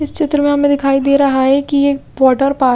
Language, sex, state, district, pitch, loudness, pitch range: Hindi, female, Chhattisgarh, Raipur, 280 Hz, -13 LUFS, 270-285 Hz